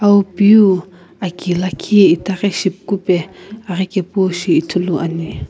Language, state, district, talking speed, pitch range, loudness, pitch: Sumi, Nagaland, Kohima, 100 wpm, 180-200 Hz, -15 LUFS, 185 Hz